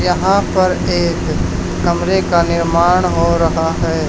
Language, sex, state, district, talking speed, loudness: Hindi, male, Haryana, Charkhi Dadri, 130 wpm, -15 LUFS